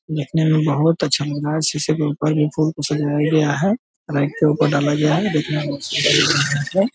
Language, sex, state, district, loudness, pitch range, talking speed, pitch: Hindi, male, Bihar, Purnia, -18 LUFS, 145-155 Hz, 240 wpm, 150 Hz